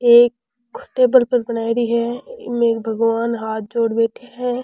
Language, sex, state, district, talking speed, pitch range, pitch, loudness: Rajasthani, female, Rajasthan, Churu, 155 wpm, 230-245 Hz, 235 Hz, -18 LUFS